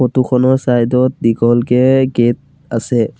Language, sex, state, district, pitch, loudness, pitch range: Assamese, male, Assam, Sonitpur, 125 Hz, -13 LUFS, 120-130 Hz